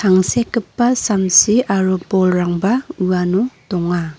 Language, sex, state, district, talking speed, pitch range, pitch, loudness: Garo, female, Meghalaya, North Garo Hills, 85 wpm, 180-230 Hz, 190 Hz, -16 LUFS